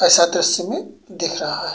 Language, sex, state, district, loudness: Bhojpuri, male, Uttar Pradesh, Gorakhpur, -18 LUFS